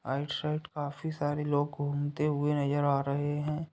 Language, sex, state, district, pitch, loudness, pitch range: Hindi, male, Uttar Pradesh, Ghazipur, 145 Hz, -31 LUFS, 145-150 Hz